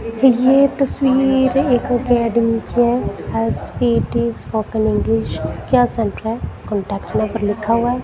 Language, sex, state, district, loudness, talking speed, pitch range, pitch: Hindi, female, Punjab, Kapurthala, -17 LUFS, 110 wpm, 200-250 Hz, 230 Hz